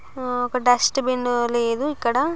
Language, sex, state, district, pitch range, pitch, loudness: Telugu, female, Andhra Pradesh, Guntur, 240-260 Hz, 245 Hz, -21 LUFS